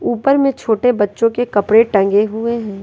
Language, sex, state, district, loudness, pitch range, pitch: Hindi, female, Bihar, West Champaran, -15 LUFS, 205-240 Hz, 225 Hz